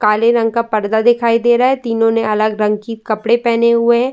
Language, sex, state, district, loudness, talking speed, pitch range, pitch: Hindi, female, Uttar Pradesh, Jyotiba Phule Nagar, -14 LUFS, 245 wpm, 215-235 Hz, 230 Hz